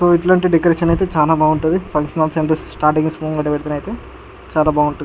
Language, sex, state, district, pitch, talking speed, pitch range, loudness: Telugu, male, Andhra Pradesh, Guntur, 155 Hz, 140 wpm, 150-170 Hz, -16 LUFS